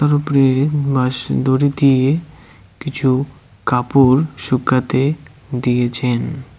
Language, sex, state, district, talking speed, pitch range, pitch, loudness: Bengali, male, West Bengal, Cooch Behar, 75 wpm, 130-140 Hz, 135 Hz, -16 LUFS